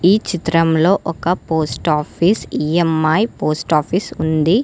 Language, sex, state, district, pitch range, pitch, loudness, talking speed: Telugu, female, Telangana, Hyderabad, 155-180 Hz, 165 Hz, -17 LUFS, 115 wpm